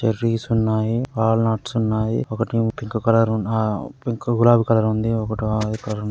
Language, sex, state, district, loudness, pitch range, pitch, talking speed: Telugu, male, Andhra Pradesh, Guntur, -21 LUFS, 110-115 Hz, 110 Hz, 110 wpm